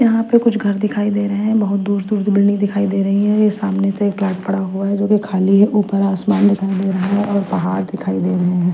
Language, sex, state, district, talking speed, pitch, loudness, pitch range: Hindi, female, Punjab, Fazilka, 265 wpm, 200 Hz, -16 LUFS, 195-205 Hz